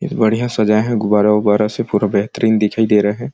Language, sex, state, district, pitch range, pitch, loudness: Hindi, male, Chhattisgarh, Sarguja, 105-115 Hz, 105 Hz, -15 LUFS